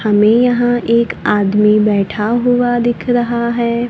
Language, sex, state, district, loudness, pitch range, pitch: Hindi, female, Maharashtra, Gondia, -13 LUFS, 210-240 Hz, 235 Hz